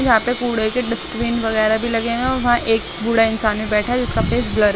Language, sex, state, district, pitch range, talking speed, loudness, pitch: Hindi, female, Delhi, New Delhi, 220-240 Hz, 275 wpm, -17 LUFS, 230 Hz